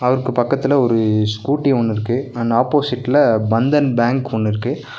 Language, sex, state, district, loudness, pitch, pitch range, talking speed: Tamil, male, Tamil Nadu, Nilgiris, -17 LUFS, 125 Hz, 115-135 Hz, 145 wpm